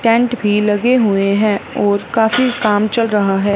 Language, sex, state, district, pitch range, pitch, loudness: Hindi, female, Punjab, Fazilka, 205-230 Hz, 210 Hz, -14 LUFS